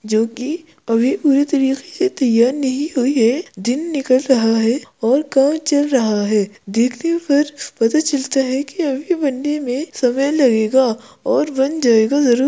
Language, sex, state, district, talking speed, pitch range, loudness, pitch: Hindi, female, Uttar Pradesh, Jyotiba Phule Nagar, 160 wpm, 235-290 Hz, -17 LUFS, 265 Hz